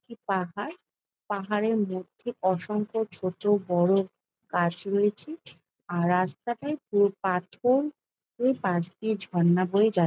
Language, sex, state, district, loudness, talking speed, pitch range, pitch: Bengali, female, West Bengal, Jalpaiguri, -27 LUFS, 115 wpm, 180-220 Hz, 200 Hz